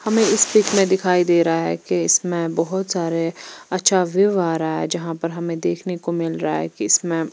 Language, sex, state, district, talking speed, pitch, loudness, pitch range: Hindi, female, Bihar, Patna, 220 wpm, 170 Hz, -19 LUFS, 165-190 Hz